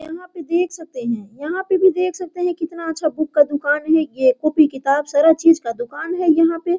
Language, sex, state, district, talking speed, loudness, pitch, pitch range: Hindi, female, Jharkhand, Sahebganj, 245 wpm, -18 LUFS, 320 Hz, 290-345 Hz